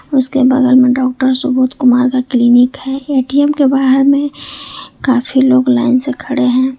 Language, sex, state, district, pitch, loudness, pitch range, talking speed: Hindi, female, Jharkhand, Ranchi, 260 Hz, -12 LUFS, 255-270 Hz, 170 wpm